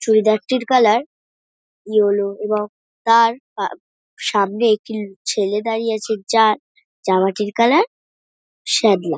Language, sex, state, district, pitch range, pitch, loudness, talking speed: Bengali, female, West Bengal, North 24 Parganas, 205-230 Hz, 215 Hz, -18 LUFS, 100 wpm